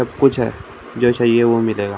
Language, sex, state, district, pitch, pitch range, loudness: Hindi, male, Maharashtra, Gondia, 115 Hz, 110-120 Hz, -16 LUFS